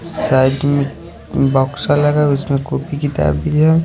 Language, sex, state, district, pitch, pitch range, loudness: Hindi, male, Odisha, Khordha, 140 Hz, 135-150 Hz, -16 LUFS